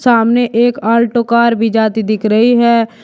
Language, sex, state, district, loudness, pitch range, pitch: Hindi, male, Uttar Pradesh, Shamli, -12 LUFS, 225-235 Hz, 230 Hz